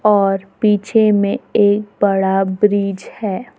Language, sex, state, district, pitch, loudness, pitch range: Hindi, female, Maharashtra, Gondia, 205 Hz, -16 LUFS, 195-210 Hz